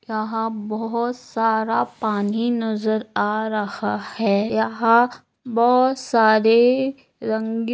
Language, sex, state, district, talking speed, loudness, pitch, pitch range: Hindi, female, Maharashtra, Nagpur, 95 wpm, -20 LUFS, 225 Hz, 215-235 Hz